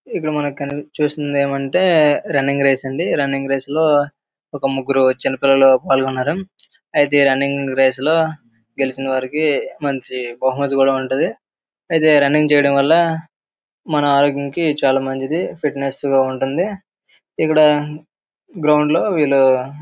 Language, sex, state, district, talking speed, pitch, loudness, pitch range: Telugu, male, Andhra Pradesh, Srikakulam, 105 wpm, 140 Hz, -17 LUFS, 135-150 Hz